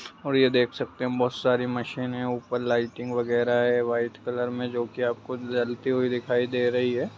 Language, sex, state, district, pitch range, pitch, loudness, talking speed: Hindi, male, Bihar, Lakhisarai, 120-125 Hz, 125 Hz, -26 LUFS, 200 wpm